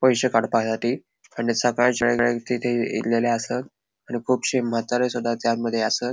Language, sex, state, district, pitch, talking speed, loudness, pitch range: Konkani, male, Goa, North and South Goa, 120 Hz, 135 wpm, -23 LUFS, 115-125 Hz